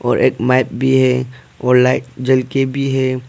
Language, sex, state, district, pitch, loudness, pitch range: Hindi, male, Arunachal Pradesh, Papum Pare, 130 Hz, -15 LUFS, 125-130 Hz